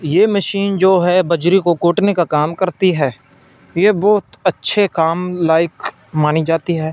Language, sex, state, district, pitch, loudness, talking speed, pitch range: Hindi, male, Punjab, Fazilka, 175 Hz, -15 LUFS, 165 wpm, 160-190 Hz